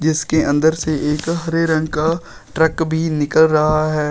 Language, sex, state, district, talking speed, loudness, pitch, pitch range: Hindi, male, Uttar Pradesh, Shamli, 175 wpm, -17 LUFS, 160 Hz, 155-160 Hz